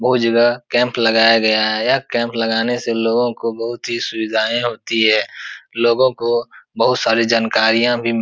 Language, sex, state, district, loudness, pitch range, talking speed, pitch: Hindi, male, Uttar Pradesh, Etah, -16 LUFS, 115-120 Hz, 175 wpm, 115 Hz